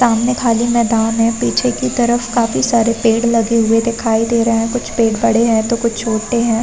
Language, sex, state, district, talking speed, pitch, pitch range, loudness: Hindi, female, Bihar, Madhepura, 225 wpm, 230 Hz, 225-235 Hz, -15 LUFS